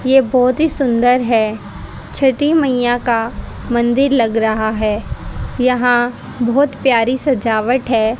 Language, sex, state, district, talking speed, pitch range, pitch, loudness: Hindi, female, Haryana, Rohtak, 125 wpm, 230-265 Hz, 245 Hz, -15 LUFS